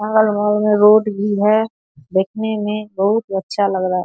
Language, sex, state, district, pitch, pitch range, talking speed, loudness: Hindi, female, Bihar, Saharsa, 210 Hz, 195-215 Hz, 190 wpm, -17 LUFS